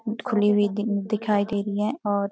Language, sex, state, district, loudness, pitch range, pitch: Hindi, female, Uttarakhand, Uttarkashi, -24 LUFS, 205-215 Hz, 210 Hz